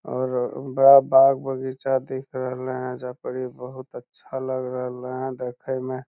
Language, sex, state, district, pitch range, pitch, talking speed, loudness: Magahi, male, Bihar, Lakhisarai, 125-130 Hz, 130 Hz, 170 wpm, -23 LUFS